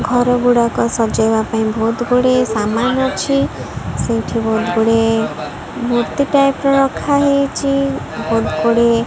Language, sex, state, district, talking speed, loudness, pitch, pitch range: Odia, female, Odisha, Malkangiri, 125 wpm, -16 LUFS, 240 Hz, 225-275 Hz